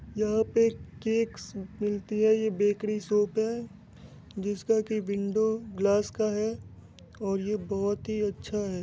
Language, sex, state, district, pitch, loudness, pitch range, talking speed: Hindi, male, Bihar, Muzaffarpur, 210 Hz, -29 LUFS, 200-220 Hz, 150 wpm